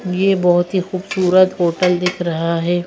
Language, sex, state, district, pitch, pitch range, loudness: Hindi, female, Madhya Pradesh, Bhopal, 180 Hz, 175-185 Hz, -16 LUFS